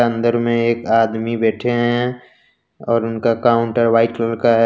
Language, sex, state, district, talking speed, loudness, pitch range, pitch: Hindi, male, Jharkhand, Ranchi, 165 wpm, -17 LUFS, 115-120 Hz, 115 Hz